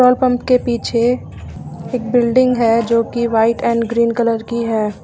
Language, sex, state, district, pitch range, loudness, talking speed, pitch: Hindi, female, Uttar Pradesh, Lucknow, 230-245 Hz, -16 LUFS, 165 wpm, 235 Hz